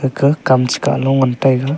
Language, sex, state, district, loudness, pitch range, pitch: Wancho, male, Arunachal Pradesh, Longding, -15 LUFS, 130-140 Hz, 135 Hz